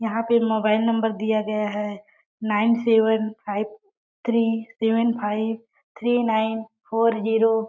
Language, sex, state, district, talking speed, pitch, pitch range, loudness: Hindi, female, Chhattisgarh, Balrampur, 140 wpm, 225 Hz, 215-230 Hz, -23 LUFS